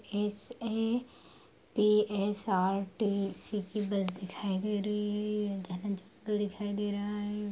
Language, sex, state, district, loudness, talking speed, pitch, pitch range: Hindi, female, Bihar, Bhagalpur, -33 LUFS, 95 wpm, 205 Hz, 200-210 Hz